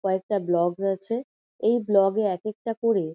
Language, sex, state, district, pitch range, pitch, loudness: Bengali, female, West Bengal, Kolkata, 190-225 Hz, 205 Hz, -25 LUFS